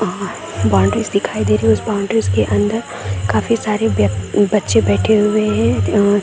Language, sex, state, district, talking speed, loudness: Hindi, female, Bihar, Saran, 155 wpm, -16 LUFS